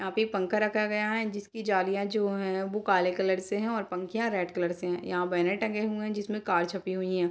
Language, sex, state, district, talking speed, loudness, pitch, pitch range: Hindi, female, Bihar, Darbhanga, 255 wpm, -29 LUFS, 195 Hz, 185-215 Hz